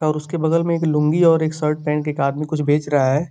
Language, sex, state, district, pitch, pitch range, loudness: Hindi, male, Uttar Pradesh, Gorakhpur, 150 Hz, 150-160 Hz, -19 LUFS